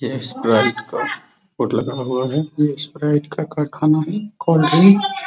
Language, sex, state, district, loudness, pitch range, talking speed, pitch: Hindi, male, Bihar, Araria, -18 LUFS, 145-165 Hz, 170 wpm, 150 Hz